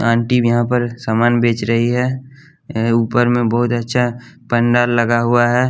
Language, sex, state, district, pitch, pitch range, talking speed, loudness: Hindi, male, Bihar, West Champaran, 120 Hz, 115-125 Hz, 170 wpm, -16 LUFS